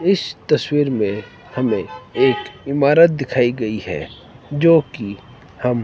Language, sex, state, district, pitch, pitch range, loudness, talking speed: Hindi, male, Himachal Pradesh, Shimla, 130 Hz, 120-150 Hz, -18 LUFS, 125 wpm